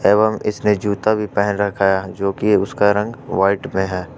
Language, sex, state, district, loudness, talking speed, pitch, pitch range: Hindi, male, Jharkhand, Ranchi, -18 LUFS, 200 wpm, 100 Hz, 95-105 Hz